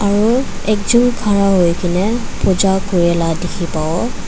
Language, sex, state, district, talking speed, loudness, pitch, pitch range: Nagamese, female, Nagaland, Dimapur, 125 wpm, -15 LUFS, 195 Hz, 175-215 Hz